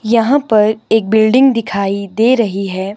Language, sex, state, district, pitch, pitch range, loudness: Hindi, female, Himachal Pradesh, Shimla, 220 Hz, 200-230 Hz, -13 LUFS